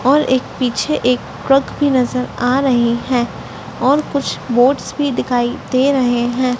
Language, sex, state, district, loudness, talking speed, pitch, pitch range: Hindi, female, Madhya Pradesh, Dhar, -16 LUFS, 165 wpm, 255 Hz, 245-275 Hz